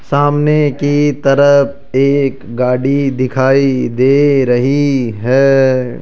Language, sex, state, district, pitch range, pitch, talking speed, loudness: Hindi, male, Rajasthan, Jaipur, 130-140 Hz, 135 Hz, 90 wpm, -12 LUFS